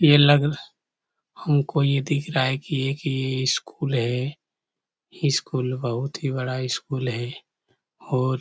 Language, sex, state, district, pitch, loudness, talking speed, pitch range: Hindi, male, Chhattisgarh, Korba, 135 Hz, -24 LUFS, 145 wpm, 130-145 Hz